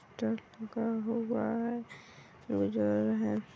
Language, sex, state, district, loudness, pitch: Maithili, female, Bihar, Vaishali, -33 LUFS, 220 Hz